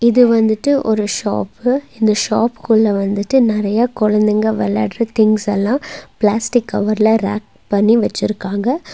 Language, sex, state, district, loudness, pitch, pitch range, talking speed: Tamil, female, Tamil Nadu, Nilgiris, -16 LUFS, 220 Hz, 205-235 Hz, 115 wpm